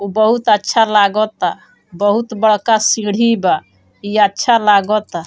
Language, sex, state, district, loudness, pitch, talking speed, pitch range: Bhojpuri, female, Bihar, Muzaffarpur, -14 LUFS, 215 Hz, 125 wpm, 205-220 Hz